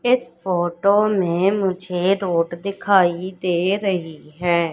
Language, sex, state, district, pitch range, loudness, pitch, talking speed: Hindi, female, Madhya Pradesh, Katni, 170-195 Hz, -20 LUFS, 185 Hz, 115 wpm